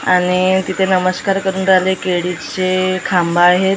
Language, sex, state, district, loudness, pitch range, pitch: Marathi, female, Maharashtra, Gondia, -15 LUFS, 180-190 Hz, 185 Hz